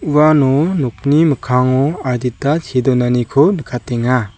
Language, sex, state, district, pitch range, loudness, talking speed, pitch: Garo, male, Meghalaya, South Garo Hills, 125-150 Hz, -15 LUFS, 95 wpm, 135 Hz